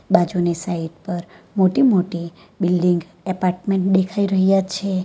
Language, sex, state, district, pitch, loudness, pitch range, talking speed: Gujarati, female, Gujarat, Valsad, 185 Hz, -20 LUFS, 175-195 Hz, 120 wpm